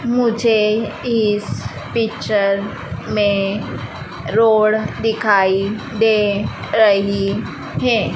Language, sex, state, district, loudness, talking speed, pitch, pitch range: Hindi, female, Madhya Pradesh, Dhar, -17 LUFS, 65 wpm, 210 Hz, 195-220 Hz